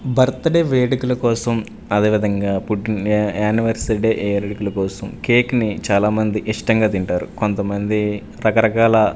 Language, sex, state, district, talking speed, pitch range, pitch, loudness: Telugu, male, Andhra Pradesh, Manyam, 120 wpm, 105-115 Hz, 110 Hz, -18 LUFS